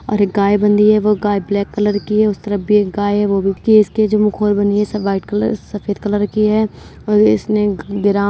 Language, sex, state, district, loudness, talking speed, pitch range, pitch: Hindi, female, Uttar Pradesh, Jyotiba Phule Nagar, -15 LUFS, 245 wpm, 200-210 Hz, 205 Hz